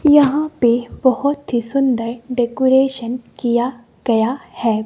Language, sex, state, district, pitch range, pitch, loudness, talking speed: Hindi, female, Bihar, West Champaran, 235-270 Hz, 250 Hz, -18 LUFS, 110 wpm